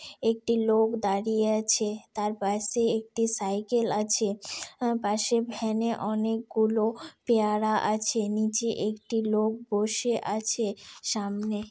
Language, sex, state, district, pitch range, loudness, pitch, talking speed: Bengali, female, West Bengal, Malda, 210-225 Hz, -28 LUFS, 220 Hz, 115 wpm